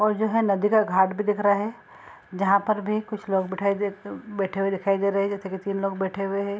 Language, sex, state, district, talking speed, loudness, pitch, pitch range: Hindi, female, Bihar, Saharsa, 280 wpm, -24 LUFS, 200 Hz, 195-210 Hz